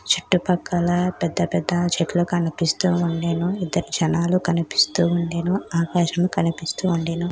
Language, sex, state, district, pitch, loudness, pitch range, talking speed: Telugu, female, Telangana, Hyderabad, 175 Hz, -21 LUFS, 170-180 Hz, 125 wpm